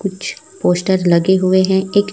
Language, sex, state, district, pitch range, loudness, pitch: Hindi, female, Chhattisgarh, Raipur, 185-190 Hz, -15 LUFS, 190 Hz